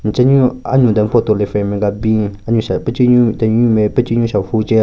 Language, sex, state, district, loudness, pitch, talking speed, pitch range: Rengma, male, Nagaland, Kohima, -14 LUFS, 110 Hz, 210 wpm, 105-120 Hz